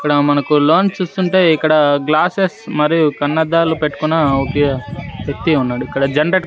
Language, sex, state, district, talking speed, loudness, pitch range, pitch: Telugu, male, Andhra Pradesh, Sri Satya Sai, 140 wpm, -15 LUFS, 145-165 Hz, 150 Hz